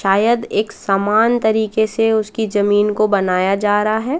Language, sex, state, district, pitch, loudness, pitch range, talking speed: Hindi, female, Madhya Pradesh, Katni, 215 Hz, -16 LUFS, 205-220 Hz, 170 wpm